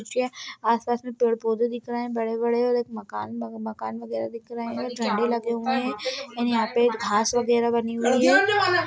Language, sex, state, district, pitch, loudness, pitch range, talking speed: Hindi, female, Bihar, Lakhisarai, 235 Hz, -25 LUFS, 225-245 Hz, 190 wpm